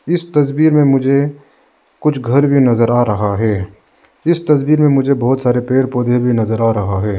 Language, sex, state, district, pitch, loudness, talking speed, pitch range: Hindi, male, Arunachal Pradesh, Lower Dibang Valley, 130 Hz, -14 LUFS, 200 wpm, 115-145 Hz